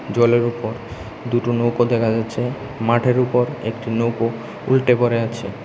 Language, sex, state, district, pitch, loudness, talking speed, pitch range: Bengali, male, Tripura, West Tripura, 120 Hz, -20 LUFS, 140 wpm, 115-120 Hz